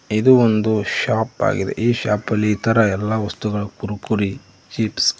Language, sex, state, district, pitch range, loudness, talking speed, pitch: Kannada, male, Karnataka, Koppal, 105-115 Hz, -19 LUFS, 150 wpm, 110 Hz